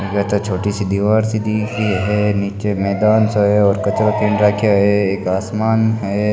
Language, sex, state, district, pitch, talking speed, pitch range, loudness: Marwari, male, Rajasthan, Nagaur, 105 Hz, 180 wpm, 100-105 Hz, -16 LUFS